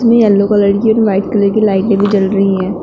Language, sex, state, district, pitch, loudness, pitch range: Hindi, female, Uttar Pradesh, Shamli, 205 Hz, -11 LUFS, 195-215 Hz